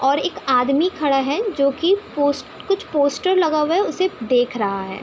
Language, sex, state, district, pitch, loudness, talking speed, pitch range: Hindi, female, Uttar Pradesh, Budaun, 285 Hz, -19 LUFS, 215 wpm, 255-365 Hz